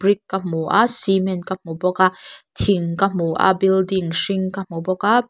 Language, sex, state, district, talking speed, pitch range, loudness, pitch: Mizo, female, Mizoram, Aizawl, 225 wpm, 180-195 Hz, -19 LUFS, 190 Hz